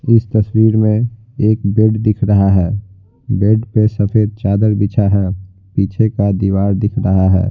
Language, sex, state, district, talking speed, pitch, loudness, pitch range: Hindi, male, Bihar, Patna, 160 wpm, 105 Hz, -14 LUFS, 100-110 Hz